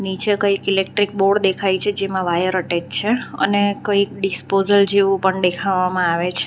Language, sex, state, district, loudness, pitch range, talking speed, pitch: Gujarati, female, Gujarat, Valsad, -18 LUFS, 185-200 Hz, 165 wpm, 195 Hz